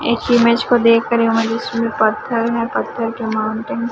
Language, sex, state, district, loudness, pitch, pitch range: Hindi, male, Chhattisgarh, Raipur, -16 LUFS, 230 Hz, 225-235 Hz